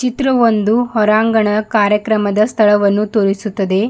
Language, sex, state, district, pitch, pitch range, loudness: Kannada, female, Karnataka, Bidar, 215 Hz, 210-225 Hz, -14 LUFS